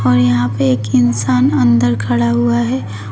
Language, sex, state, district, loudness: Hindi, female, Uttar Pradesh, Shamli, -14 LUFS